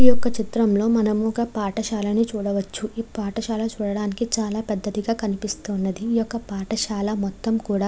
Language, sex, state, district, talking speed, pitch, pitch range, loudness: Telugu, female, Andhra Pradesh, Krishna, 165 wpm, 215 Hz, 205-225 Hz, -24 LUFS